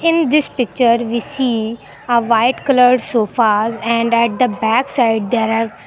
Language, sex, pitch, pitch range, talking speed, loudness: English, female, 235 Hz, 225-250 Hz, 175 wpm, -15 LUFS